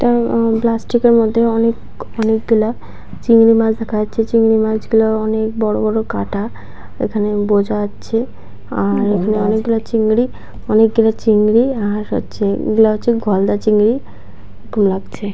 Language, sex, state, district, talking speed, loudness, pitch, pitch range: Bengali, female, West Bengal, Purulia, 125 wpm, -15 LUFS, 220 Hz, 210-225 Hz